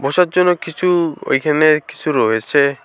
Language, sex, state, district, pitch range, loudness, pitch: Bengali, male, West Bengal, Alipurduar, 145-180 Hz, -15 LUFS, 155 Hz